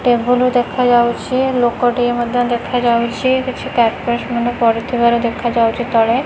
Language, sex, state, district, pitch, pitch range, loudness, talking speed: Odia, female, Odisha, Khordha, 240 Hz, 235-245 Hz, -15 LUFS, 155 wpm